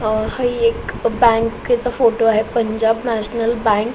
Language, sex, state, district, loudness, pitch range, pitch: Marathi, female, Maharashtra, Solapur, -17 LUFS, 220-235 Hz, 230 Hz